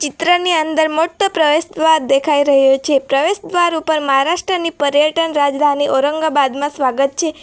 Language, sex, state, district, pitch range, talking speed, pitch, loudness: Gujarati, female, Gujarat, Valsad, 280-330 Hz, 130 wpm, 305 Hz, -15 LUFS